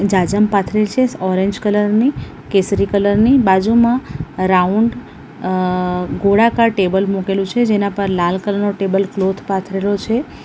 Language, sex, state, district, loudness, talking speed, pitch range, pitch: Gujarati, female, Gujarat, Valsad, -16 LUFS, 140 wpm, 190-215 Hz, 200 Hz